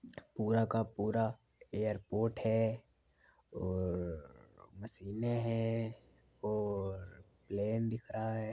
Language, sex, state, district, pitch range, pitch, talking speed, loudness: Hindi, male, Uttar Pradesh, Varanasi, 100-115 Hz, 110 Hz, 90 wpm, -37 LUFS